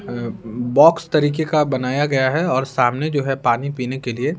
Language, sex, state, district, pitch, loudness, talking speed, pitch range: Hindi, male, Bihar, Patna, 130 Hz, -19 LUFS, 205 wpm, 125-145 Hz